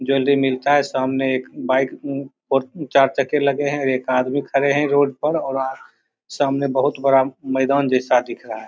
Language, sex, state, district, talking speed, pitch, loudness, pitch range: Hindi, male, Bihar, Begusarai, 195 wpm, 135 Hz, -19 LUFS, 130-140 Hz